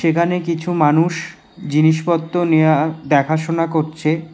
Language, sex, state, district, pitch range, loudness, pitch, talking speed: Bengali, male, West Bengal, Alipurduar, 155-170 Hz, -17 LUFS, 160 Hz, 95 wpm